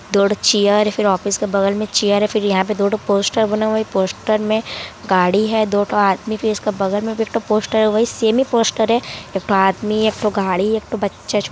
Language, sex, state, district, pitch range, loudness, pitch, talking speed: Hindi, female, Bihar, Kishanganj, 200-220 Hz, -17 LUFS, 210 Hz, 220 wpm